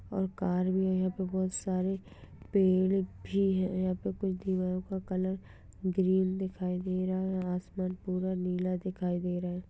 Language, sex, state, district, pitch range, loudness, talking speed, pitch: Hindi, female, Bihar, Darbhanga, 185-190 Hz, -32 LUFS, 180 wpm, 185 Hz